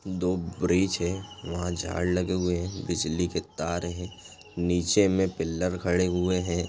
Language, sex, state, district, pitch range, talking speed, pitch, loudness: Hindi, male, Chhattisgarh, Raigarh, 85-90 Hz, 160 wpm, 90 Hz, -28 LUFS